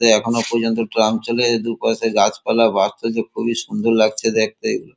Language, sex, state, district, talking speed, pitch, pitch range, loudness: Bengali, male, West Bengal, Kolkata, 180 wpm, 115 Hz, 110-115 Hz, -18 LUFS